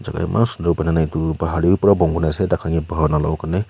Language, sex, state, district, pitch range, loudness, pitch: Nagamese, male, Nagaland, Kohima, 80-95 Hz, -19 LUFS, 85 Hz